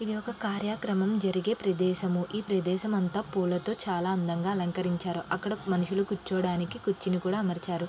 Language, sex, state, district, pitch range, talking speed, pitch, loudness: Telugu, female, Andhra Pradesh, Srikakulam, 180-205 Hz, 135 wpm, 190 Hz, -30 LUFS